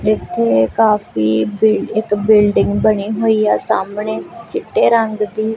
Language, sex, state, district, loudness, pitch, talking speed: Punjabi, female, Punjab, Kapurthala, -15 LUFS, 210 Hz, 130 wpm